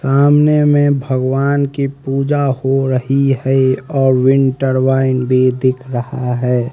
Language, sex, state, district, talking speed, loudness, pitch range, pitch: Hindi, male, Haryana, Rohtak, 135 wpm, -14 LUFS, 130-140 Hz, 135 Hz